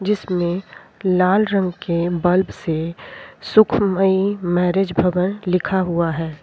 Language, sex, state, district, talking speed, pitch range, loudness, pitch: Hindi, female, Chhattisgarh, Kabirdham, 110 wpm, 170-195 Hz, -19 LUFS, 180 Hz